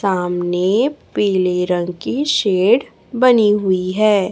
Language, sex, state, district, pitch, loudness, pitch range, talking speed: Hindi, female, Chhattisgarh, Raipur, 195 Hz, -16 LUFS, 180-225 Hz, 110 wpm